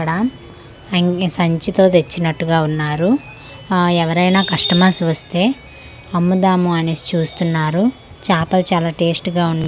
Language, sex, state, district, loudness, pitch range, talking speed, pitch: Telugu, female, Andhra Pradesh, Manyam, -16 LUFS, 165-185 Hz, 110 wpm, 175 Hz